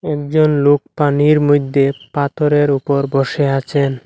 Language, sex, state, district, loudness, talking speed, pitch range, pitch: Bengali, male, Assam, Hailakandi, -15 LUFS, 120 wpm, 140-145 Hz, 145 Hz